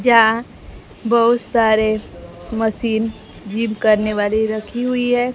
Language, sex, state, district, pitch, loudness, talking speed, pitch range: Hindi, female, Bihar, Kaimur, 225 Hz, -18 LUFS, 110 wpm, 215-235 Hz